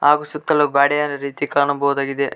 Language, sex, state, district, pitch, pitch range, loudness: Kannada, male, Karnataka, Koppal, 145 Hz, 140-150 Hz, -18 LUFS